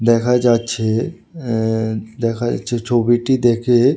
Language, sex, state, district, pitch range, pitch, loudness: Bengali, male, Tripura, West Tripura, 115-120 Hz, 120 Hz, -17 LUFS